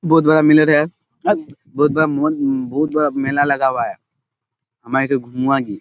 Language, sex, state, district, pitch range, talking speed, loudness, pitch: Hindi, male, Bihar, Kishanganj, 135-150 Hz, 125 wpm, -17 LUFS, 140 Hz